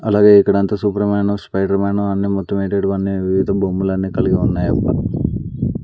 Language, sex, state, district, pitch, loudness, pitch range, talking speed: Telugu, male, Andhra Pradesh, Sri Satya Sai, 100 Hz, -17 LUFS, 95-100 Hz, 135 wpm